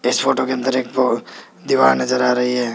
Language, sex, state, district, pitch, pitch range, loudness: Hindi, male, Rajasthan, Jaipur, 125 Hz, 120-130 Hz, -18 LUFS